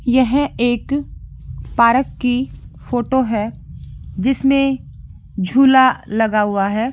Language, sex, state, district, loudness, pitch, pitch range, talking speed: Hindi, male, Jharkhand, Jamtara, -17 LUFS, 245 Hz, 225-265 Hz, 105 wpm